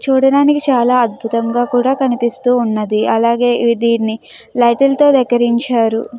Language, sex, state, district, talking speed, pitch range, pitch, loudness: Telugu, female, Andhra Pradesh, Guntur, 85 wpm, 230-260 Hz, 240 Hz, -13 LUFS